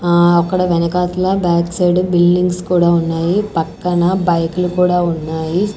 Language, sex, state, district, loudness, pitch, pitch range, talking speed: Telugu, female, Andhra Pradesh, Annamaya, -15 LUFS, 175 Hz, 170-180 Hz, 125 wpm